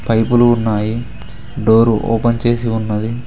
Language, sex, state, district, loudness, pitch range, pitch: Telugu, male, Telangana, Mahabubabad, -15 LUFS, 110-120 Hz, 115 Hz